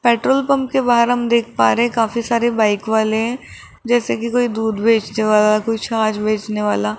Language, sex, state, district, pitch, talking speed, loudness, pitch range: Hindi, female, Rajasthan, Jaipur, 225 Hz, 205 wpm, -17 LUFS, 215-240 Hz